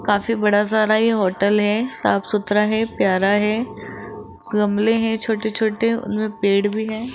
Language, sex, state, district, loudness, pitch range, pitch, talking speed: Hindi, female, Rajasthan, Jaipur, -19 LUFS, 205-225 Hz, 215 Hz, 160 wpm